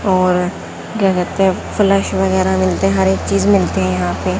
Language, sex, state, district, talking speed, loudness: Hindi, female, Haryana, Charkhi Dadri, 175 wpm, -15 LUFS